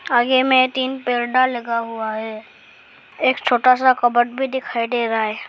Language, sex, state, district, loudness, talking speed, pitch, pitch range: Hindi, male, Arunachal Pradesh, Lower Dibang Valley, -18 LUFS, 175 wpm, 245 Hz, 230-255 Hz